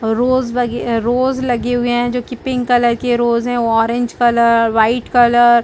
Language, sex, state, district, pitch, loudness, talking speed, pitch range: Hindi, female, Chhattisgarh, Bilaspur, 240 Hz, -15 LUFS, 190 wpm, 235-245 Hz